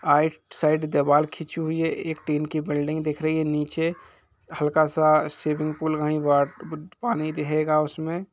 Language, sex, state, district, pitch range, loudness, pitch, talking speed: Hindi, male, Jharkhand, Jamtara, 150-160 Hz, -24 LUFS, 155 Hz, 175 wpm